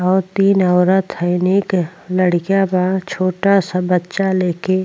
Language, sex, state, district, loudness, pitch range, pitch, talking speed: Bhojpuri, female, Uttar Pradesh, Ghazipur, -16 LUFS, 180-190 Hz, 185 Hz, 160 wpm